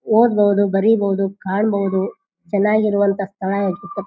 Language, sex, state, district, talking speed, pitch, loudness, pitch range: Kannada, female, Karnataka, Bijapur, 90 wpm, 200 Hz, -18 LUFS, 195-210 Hz